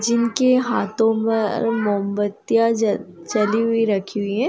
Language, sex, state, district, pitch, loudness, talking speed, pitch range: Hindi, female, Bihar, Saran, 225 Hz, -20 LUFS, 120 wpm, 205-230 Hz